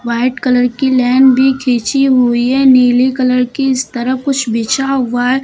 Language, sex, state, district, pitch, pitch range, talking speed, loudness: Hindi, female, Uttar Pradesh, Lucknow, 255 Hz, 245-265 Hz, 185 wpm, -12 LUFS